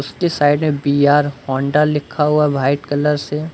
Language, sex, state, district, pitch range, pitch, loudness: Hindi, male, Uttar Pradesh, Lucknow, 145-150 Hz, 145 Hz, -16 LUFS